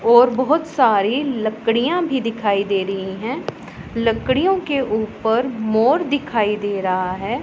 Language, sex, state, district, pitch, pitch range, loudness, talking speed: Hindi, female, Punjab, Pathankot, 230 Hz, 210-265 Hz, -19 LUFS, 135 wpm